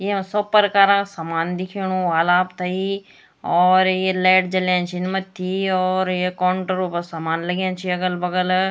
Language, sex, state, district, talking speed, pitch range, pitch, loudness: Garhwali, female, Uttarakhand, Tehri Garhwal, 160 wpm, 180-190 Hz, 185 Hz, -20 LUFS